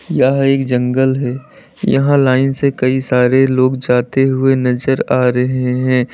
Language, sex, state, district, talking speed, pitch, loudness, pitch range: Hindi, male, Uttar Pradesh, Lalitpur, 155 wpm, 130 Hz, -14 LUFS, 125-135 Hz